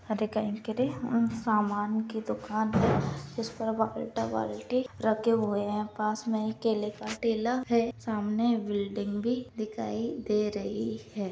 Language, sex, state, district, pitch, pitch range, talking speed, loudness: Hindi, female, Bihar, Purnia, 220 Hz, 210-230 Hz, 130 wpm, -30 LUFS